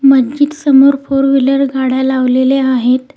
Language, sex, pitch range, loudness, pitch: Marathi, female, 260-275 Hz, -11 LUFS, 270 Hz